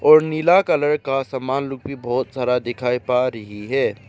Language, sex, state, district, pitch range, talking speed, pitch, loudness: Hindi, male, Arunachal Pradesh, Lower Dibang Valley, 125-140 Hz, 190 wpm, 130 Hz, -20 LUFS